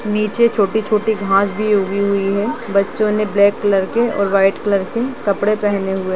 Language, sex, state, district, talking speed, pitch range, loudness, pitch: Hindi, female, Chhattisgarh, Rajnandgaon, 205 wpm, 200-215 Hz, -16 LUFS, 205 Hz